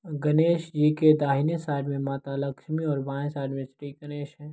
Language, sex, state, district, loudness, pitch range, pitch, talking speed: Maithili, male, Bihar, Begusarai, -26 LUFS, 140-155 Hz, 145 Hz, 200 wpm